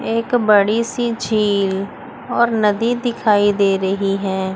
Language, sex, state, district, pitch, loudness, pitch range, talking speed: Hindi, female, Chandigarh, Chandigarh, 210 Hz, -17 LUFS, 195-230 Hz, 130 wpm